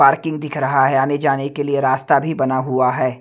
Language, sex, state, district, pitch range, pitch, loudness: Hindi, male, Himachal Pradesh, Shimla, 130-145 Hz, 135 Hz, -18 LUFS